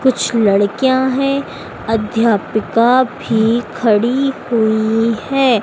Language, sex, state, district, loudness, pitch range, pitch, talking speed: Hindi, female, Madhya Pradesh, Dhar, -15 LUFS, 220-260 Hz, 230 Hz, 85 wpm